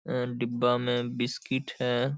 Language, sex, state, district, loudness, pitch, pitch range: Hindi, male, Bihar, Saharsa, -29 LUFS, 125 Hz, 120-130 Hz